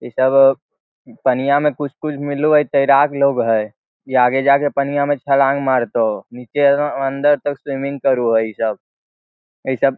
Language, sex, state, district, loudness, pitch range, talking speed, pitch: Magahi, male, Bihar, Lakhisarai, -17 LUFS, 125-145 Hz, 180 wpm, 135 Hz